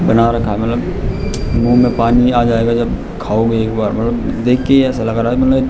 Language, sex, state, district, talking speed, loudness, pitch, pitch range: Hindi, male, Uttarakhand, Tehri Garhwal, 240 wpm, -14 LUFS, 115 Hz, 115-125 Hz